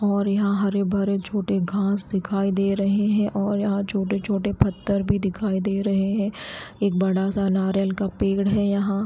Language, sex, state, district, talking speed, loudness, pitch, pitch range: Hindi, female, Bihar, Katihar, 185 wpm, -23 LUFS, 200 Hz, 195-205 Hz